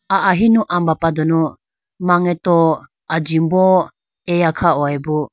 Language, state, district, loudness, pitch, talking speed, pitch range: Idu Mishmi, Arunachal Pradesh, Lower Dibang Valley, -16 LUFS, 170 Hz, 90 wpm, 160-180 Hz